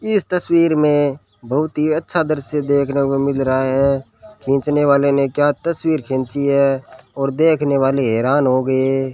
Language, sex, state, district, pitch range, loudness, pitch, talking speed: Hindi, male, Rajasthan, Bikaner, 135-155 Hz, -17 LUFS, 140 Hz, 170 wpm